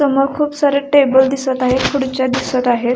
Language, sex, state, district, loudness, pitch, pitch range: Marathi, female, Maharashtra, Sindhudurg, -15 LUFS, 265 Hz, 255-280 Hz